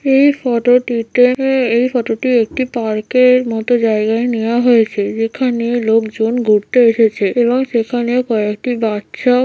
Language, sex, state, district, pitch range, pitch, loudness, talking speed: Bengali, female, West Bengal, Paschim Medinipur, 225-250 Hz, 240 Hz, -14 LUFS, 125 wpm